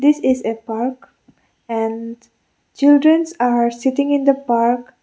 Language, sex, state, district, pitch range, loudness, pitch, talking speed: English, female, Mizoram, Aizawl, 235-280 Hz, -17 LUFS, 245 Hz, 130 wpm